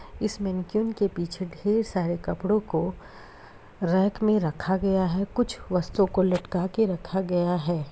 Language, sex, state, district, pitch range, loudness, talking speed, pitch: Hindi, female, Uttar Pradesh, Deoria, 175-205 Hz, -26 LUFS, 160 wpm, 190 Hz